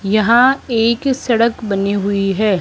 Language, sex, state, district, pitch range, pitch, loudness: Hindi, female, Rajasthan, Jaipur, 200-235 Hz, 225 Hz, -15 LUFS